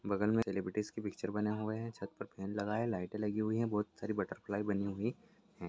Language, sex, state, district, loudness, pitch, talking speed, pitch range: Hindi, male, Chhattisgarh, Raigarh, -38 LUFS, 105 Hz, 255 wpm, 100-110 Hz